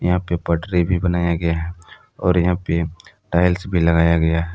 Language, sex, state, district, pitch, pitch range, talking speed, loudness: Hindi, male, Jharkhand, Palamu, 85 Hz, 85-90 Hz, 200 wpm, -19 LUFS